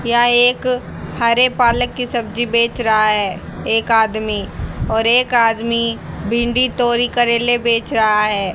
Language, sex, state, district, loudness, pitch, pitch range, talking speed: Hindi, female, Haryana, Charkhi Dadri, -15 LUFS, 235 Hz, 225-240 Hz, 140 wpm